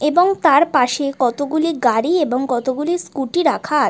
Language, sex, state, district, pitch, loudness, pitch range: Bengali, female, West Bengal, Jhargram, 290 Hz, -17 LUFS, 250-330 Hz